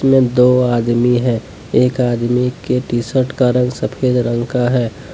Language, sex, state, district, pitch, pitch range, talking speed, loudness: Hindi, male, Jharkhand, Deoghar, 125 Hz, 120-125 Hz, 165 wpm, -15 LUFS